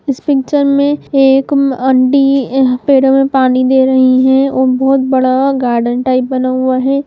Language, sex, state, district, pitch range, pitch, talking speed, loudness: Hindi, female, Bihar, Muzaffarpur, 255-275 Hz, 265 Hz, 160 wpm, -11 LUFS